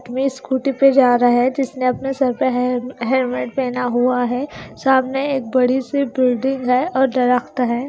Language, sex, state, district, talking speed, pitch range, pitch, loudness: Hindi, female, Haryana, Charkhi Dadri, 180 wpm, 250-270 Hz, 255 Hz, -18 LUFS